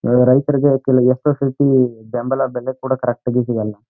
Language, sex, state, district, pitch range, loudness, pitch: Kannada, male, Karnataka, Chamarajanagar, 120-135 Hz, -17 LUFS, 130 Hz